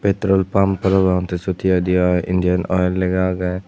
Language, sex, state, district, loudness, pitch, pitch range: Chakma, male, Tripura, West Tripura, -18 LUFS, 90 Hz, 90-95 Hz